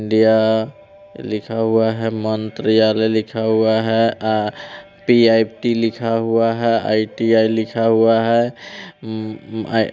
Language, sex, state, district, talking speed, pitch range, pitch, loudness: Hindi, male, Bihar, Vaishali, 110 wpm, 110-115 Hz, 110 Hz, -17 LUFS